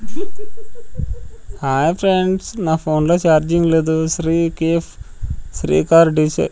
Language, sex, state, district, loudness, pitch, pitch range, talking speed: Telugu, male, Andhra Pradesh, Sri Satya Sai, -16 LUFS, 165 Hz, 155-185 Hz, 120 wpm